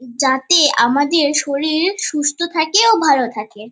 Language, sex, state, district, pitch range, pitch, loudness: Bengali, female, West Bengal, Kolkata, 260-325 Hz, 295 Hz, -15 LUFS